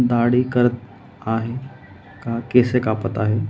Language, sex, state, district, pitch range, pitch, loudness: Marathi, male, Maharashtra, Mumbai Suburban, 110-125 Hz, 120 Hz, -20 LUFS